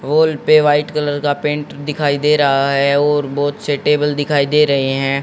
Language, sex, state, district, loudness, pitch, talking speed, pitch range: Hindi, male, Haryana, Jhajjar, -15 LUFS, 145 Hz, 205 wpm, 140-150 Hz